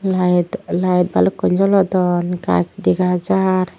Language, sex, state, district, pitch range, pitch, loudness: Chakma, female, Tripura, Unakoti, 180-190 Hz, 180 Hz, -17 LUFS